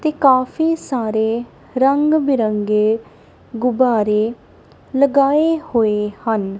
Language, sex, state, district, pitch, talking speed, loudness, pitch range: Punjabi, female, Punjab, Kapurthala, 250 Hz, 80 wpm, -17 LUFS, 220-280 Hz